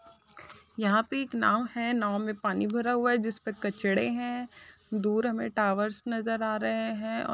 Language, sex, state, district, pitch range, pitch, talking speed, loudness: Hindi, female, Bihar, Saharsa, 210-240 Hz, 225 Hz, 190 wpm, -29 LUFS